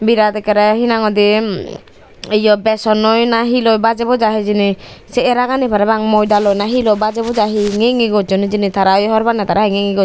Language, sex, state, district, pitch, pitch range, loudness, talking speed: Chakma, female, Tripura, Dhalai, 215 Hz, 205-230 Hz, -13 LUFS, 190 wpm